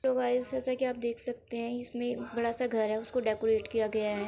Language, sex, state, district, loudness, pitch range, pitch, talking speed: Hindi, female, Uttar Pradesh, Varanasi, -32 LUFS, 220-250 Hz, 235 Hz, 250 wpm